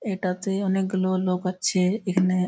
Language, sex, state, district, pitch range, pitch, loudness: Bengali, male, West Bengal, Malda, 185-190 Hz, 185 Hz, -24 LUFS